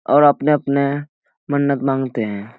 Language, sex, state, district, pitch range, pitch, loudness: Hindi, male, Bihar, Jahanabad, 135-145 Hz, 140 Hz, -18 LUFS